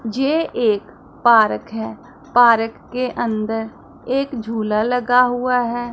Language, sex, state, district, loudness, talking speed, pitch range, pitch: Hindi, female, Punjab, Pathankot, -18 LUFS, 120 wpm, 220-250 Hz, 240 Hz